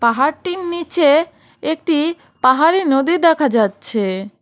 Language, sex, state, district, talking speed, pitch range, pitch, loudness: Bengali, female, West Bengal, Cooch Behar, 95 wpm, 240-335 Hz, 300 Hz, -16 LUFS